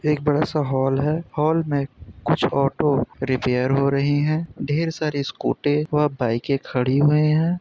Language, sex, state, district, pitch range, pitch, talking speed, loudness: Hindi, male, Uttar Pradesh, Budaun, 135-155 Hz, 145 Hz, 165 wpm, -21 LUFS